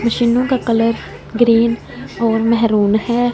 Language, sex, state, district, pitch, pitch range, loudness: Hindi, female, Punjab, Fazilka, 230 Hz, 225-240 Hz, -15 LUFS